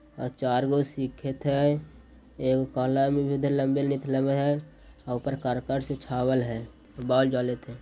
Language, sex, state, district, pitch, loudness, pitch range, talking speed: Magahi, male, Bihar, Jahanabad, 135 Hz, -27 LUFS, 125-140 Hz, 155 wpm